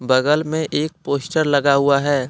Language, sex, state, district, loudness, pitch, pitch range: Hindi, male, Jharkhand, Deoghar, -18 LUFS, 145 Hz, 140-155 Hz